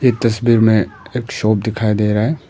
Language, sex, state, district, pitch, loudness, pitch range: Hindi, male, Arunachal Pradesh, Papum Pare, 110 Hz, -16 LUFS, 105-120 Hz